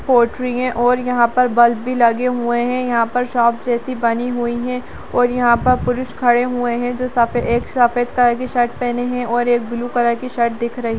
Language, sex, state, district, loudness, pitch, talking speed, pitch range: Hindi, female, Uttarakhand, Tehri Garhwal, -17 LUFS, 245 Hz, 230 wpm, 235-250 Hz